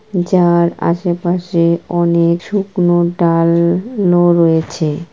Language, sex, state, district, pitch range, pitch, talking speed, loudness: Bengali, female, West Bengal, Kolkata, 170-180 Hz, 175 Hz, 70 wpm, -14 LUFS